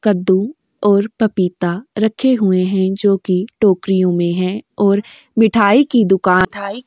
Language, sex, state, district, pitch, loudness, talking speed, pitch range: Hindi, female, Uttar Pradesh, Jyotiba Phule Nagar, 200 Hz, -15 LUFS, 140 wpm, 185-220 Hz